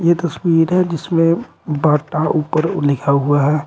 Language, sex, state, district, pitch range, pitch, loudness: Hindi, male, Uttar Pradesh, Shamli, 150-170 Hz, 155 Hz, -16 LUFS